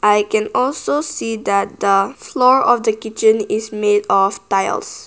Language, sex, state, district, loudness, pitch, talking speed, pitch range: English, female, Nagaland, Kohima, -17 LUFS, 215 Hz, 165 wpm, 205-250 Hz